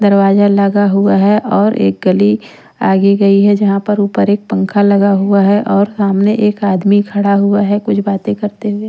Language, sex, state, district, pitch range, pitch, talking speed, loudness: Hindi, female, Punjab, Pathankot, 200-205 Hz, 200 Hz, 195 wpm, -12 LUFS